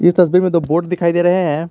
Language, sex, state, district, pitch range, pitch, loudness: Hindi, male, Jharkhand, Garhwa, 170-180 Hz, 175 Hz, -15 LUFS